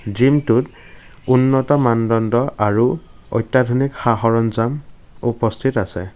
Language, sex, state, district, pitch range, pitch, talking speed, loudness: Assamese, male, Assam, Kamrup Metropolitan, 115-130 Hz, 120 Hz, 80 wpm, -18 LUFS